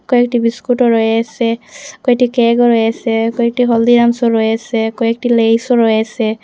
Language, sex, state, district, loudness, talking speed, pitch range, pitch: Bengali, female, Assam, Hailakandi, -13 LUFS, 140 wpm, 225-240 Hz, 235 Hz